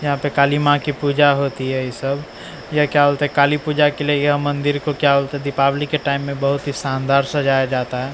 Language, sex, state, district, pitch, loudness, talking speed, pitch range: Hindi, male, Bihar, Katihar, 140 Hz, -18 LUFS, 215 wpm, 140-145 Hz